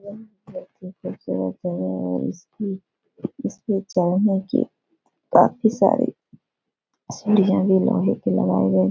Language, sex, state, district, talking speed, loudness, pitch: Hindi, female, Bihar, Jahanabad, 135 wpm, -21 LUFS, 190 Hz